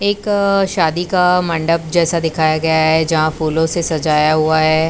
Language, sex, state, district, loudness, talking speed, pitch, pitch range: Hindi, female, Maharashtra, Mumbai Suburban, -15 LUFS, 170 wpm, 160 Hz, 155-175 Hz